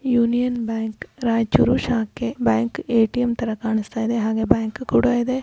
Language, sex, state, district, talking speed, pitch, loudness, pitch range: Kannada, female, Karnataka, Raichur, 165 wpm, 230 Hz, -21 LUFS, 220-245 Hz